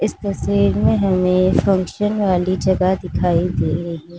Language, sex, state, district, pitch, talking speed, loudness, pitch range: Hindi, female, Uttar Pradesh, Lalitpur, 185 Hz, 160 wpm, -18 LUFS, 170-190 Hz